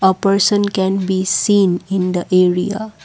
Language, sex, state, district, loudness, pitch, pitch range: English, female, Assam, Kamrup Metropolitan, -16 LUFS, 190 Hz, 185-200 Hz